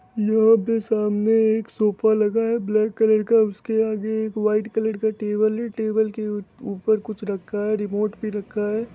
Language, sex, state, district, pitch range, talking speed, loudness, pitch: Hindi, male, Bihar, Muzaffarpur, 210-220 Hz, 210 wpm, -22 LUFS, 215 Hz